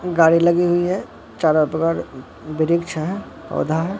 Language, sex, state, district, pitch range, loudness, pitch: Hindi, male, Bihar, Katihar, 155-175 Hz, -19 LUFS, 165 Hz